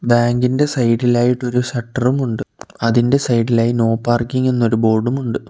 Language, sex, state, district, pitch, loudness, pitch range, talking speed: Malayalam, male, Kerala, Kollam, 120 Hz, -17 LUFS, 115-125 Hz, 175 wpm